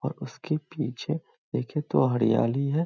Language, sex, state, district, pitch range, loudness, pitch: Hindi, male, Bihar, Muzaffarpur, 125-155 Hz, -28 LUFS, 145 Hz